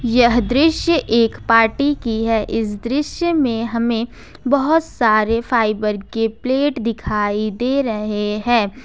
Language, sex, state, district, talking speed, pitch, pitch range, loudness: Hindi, female, Jharkhand, Ranchi, 130 wpm, 230 Hz, 220-265 Hz, -18 LUFS